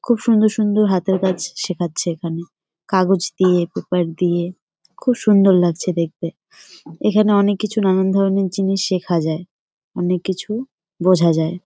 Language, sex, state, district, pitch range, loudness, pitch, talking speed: Bengali, female, West Bengal, Jalpaiguri, 175-195 Hz, -18 LUFS, 185 Hz, 150 wpm